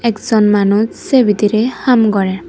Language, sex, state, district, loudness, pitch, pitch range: Chakma, female, Tripura, Dhalai, -13 LUFS, 215 Hz, 210-235 Hz